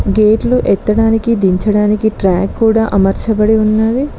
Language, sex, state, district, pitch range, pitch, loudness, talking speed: Telugu, female, Telangana, Mahabubabad, 210-225 Hz, 215 Hz, -12 LUFS, 100 wpm